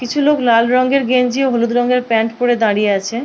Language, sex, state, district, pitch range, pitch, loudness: Bengali, female, West Bengal, Purulia, 230-255 Hz, 245 Hz, -14 LUFS